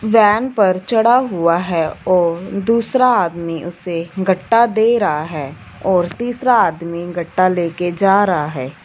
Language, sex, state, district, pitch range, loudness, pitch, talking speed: Hindi, female, Punjab, Fazilka, 170-220 Hz, -16 LUFS, 185 Hz, 140 wpm